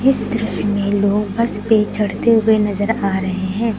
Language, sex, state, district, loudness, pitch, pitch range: Hindi, female, Uttar Pradesh, Lucknow, -17 LUFS, 210 Hz, 200-225 Hz